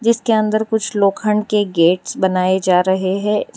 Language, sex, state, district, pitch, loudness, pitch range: Hindi, female, Gujarat, Valsad, 205 Hz, -16 LUFS, 185-215 Hz